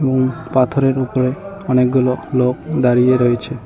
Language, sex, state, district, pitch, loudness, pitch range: Bengali, male, West Bengal, Cooch Behar, 130 Hz, -16 LUFS, 125-135 Hz